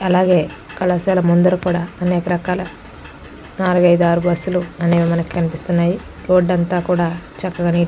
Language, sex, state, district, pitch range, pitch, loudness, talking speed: Telugu, female, Andhra Pradesh, Krishna, 170-180 Hz, 175 Hz, -17 LUFS, 135 wpm